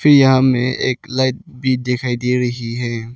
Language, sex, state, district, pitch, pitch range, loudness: Hindi, male, Arunachal Pradesh, Lower Dibang Valley, 125 Hz, 125-130 Hz, -17 LUFS